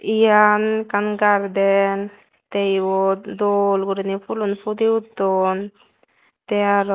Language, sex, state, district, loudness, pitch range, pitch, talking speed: Chakma, female, Tripura, West Tripura, -19 LUFS, 195-210 Hz, 200 Hz, 105 wpm